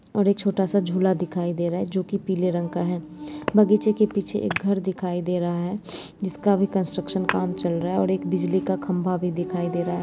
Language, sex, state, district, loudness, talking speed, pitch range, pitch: Hindi, female, Maharashtra, Dhule, -24 LUFS, 240 wpm, 175-195 Hz, 180 Hz